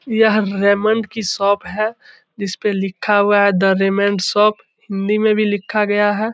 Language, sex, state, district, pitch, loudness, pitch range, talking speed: Hindi, male, Bihar, Samastipur, 205 Hz, -16 LUFS, 200-215 Hz, 170 wpm